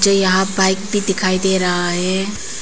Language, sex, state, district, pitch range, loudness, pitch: Hindi, female, Arunachal Pradesh, Papum Pare, 185-195 Hz, -17 LUFS, 190 Hz